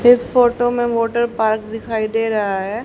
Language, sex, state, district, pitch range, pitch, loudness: Hindi, female, Haryana, Charkhi Dadri, 215-240 Hz, 225 Hz, -18 LUFS